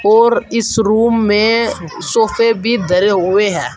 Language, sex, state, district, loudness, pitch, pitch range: Hindi, male, Uttar Pradesh, Saharanpur, -13 LUFS, 225 Hz, 205-240 Hz